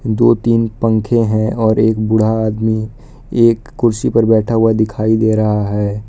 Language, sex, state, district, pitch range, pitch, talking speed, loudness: Hindi, male, Jharkhand, Palamu, 110-115 Hz, 110 Hz, 170 wpm, -14 LUFS